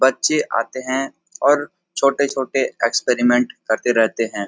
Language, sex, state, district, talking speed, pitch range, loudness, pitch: Hindi, male, Uttar Pradesh, Etah, 135 wpm, 120-140 Hz, -19 LUFS, 130 Hz